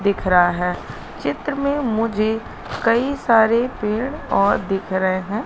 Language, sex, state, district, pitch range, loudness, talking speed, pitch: Hindi, female, Madhya Pradesh, Katni, 195-240 Hz, -20 LUFS, 145 wpm, 220 Hz